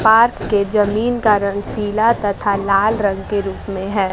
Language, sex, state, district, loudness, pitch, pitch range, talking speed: Hindi, female, Bihar, West Champaran, -17 LUFS, 205 Hz, 200-220 Hz, 190 wpm